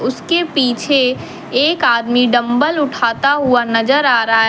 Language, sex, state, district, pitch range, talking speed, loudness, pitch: Hindi, female, Jharkhand, Deoghar, 235-290 Hz, 145 wpm, -14 LUFS, 250 Hz